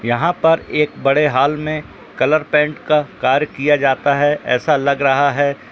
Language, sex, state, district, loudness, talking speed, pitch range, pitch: Hindi, male, Chhattisgarh, Bilaspur, -16 LUFS, 180 wpm, 140-150 Hz, 145 Hz